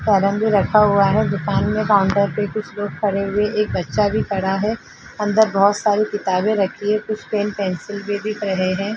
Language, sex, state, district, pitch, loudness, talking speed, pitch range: Hindi, female, Uttar Pradesh, Jalaun, 205 Hz, -19 LUFS, 205 wpm, 200-210 Hz